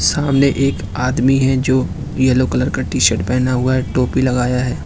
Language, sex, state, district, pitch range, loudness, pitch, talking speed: Hindi, male, Uttar Pradesh, Lucknow, 125-135 Hz, -16 LUFS, 130 Hz, 200 wpm